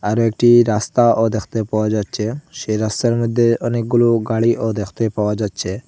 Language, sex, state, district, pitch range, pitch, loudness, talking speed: Bengali, male, Assam, Hailakandi, 110-120 Hz, 115 Hz, -17 LUFS, 145 wpm